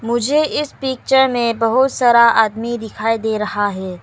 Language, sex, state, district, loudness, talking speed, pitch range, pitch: Hindi, female, Arunachal Pradesh, Longding, -16 LUFS, 165 wpm, 220-260 Hz, 235 Hz